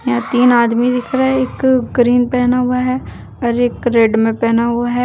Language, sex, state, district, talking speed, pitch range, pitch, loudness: Hindi, female, Jharkhand, Deoghar, 200 wpm, 235-250 Hz, 245 Hz, -14 LUFS